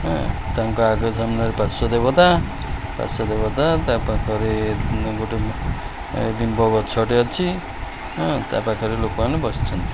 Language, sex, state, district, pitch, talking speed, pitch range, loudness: Odia, male, Odisha, Khordha, 110 Hz, 145 wpm, 110-115 Hz, -21 LUFS